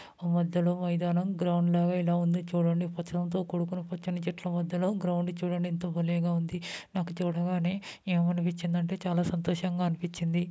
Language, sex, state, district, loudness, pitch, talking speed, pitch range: Telugu, male, Andhra Pradesh, Guntur, -30 LUFS, 175 Hz, 135 wpm, 175-180 Hz